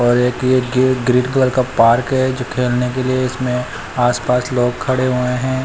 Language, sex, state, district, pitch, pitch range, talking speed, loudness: Hindi, male, Chandigarh, Chandigarh, 125 Hz, 125-130 Hz, 200 wpm, -16 LUFS